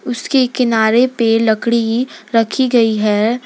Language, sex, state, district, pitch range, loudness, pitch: Hindi, female, Jharkhand, Garhwa, 220-245 Hz, -14 LUFS, 230 Hz